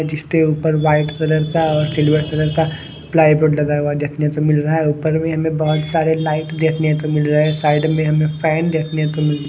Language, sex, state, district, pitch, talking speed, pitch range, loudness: Hindi, male, Bihar, West Champaran, 155 Hz, 230 wpm, 150-160 Hz, -17 LUFS